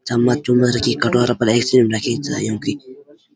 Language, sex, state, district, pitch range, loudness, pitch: Garhwali, male, Uttarakhand, Uttarkashi, 120-125 Hz, -17 LUFS, 120 Hz